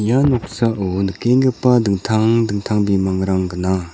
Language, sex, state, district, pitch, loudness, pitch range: Garo, male, Meghalaya, South Garo Hills, 105 Hz, -17 LUFS, 95-120 Hz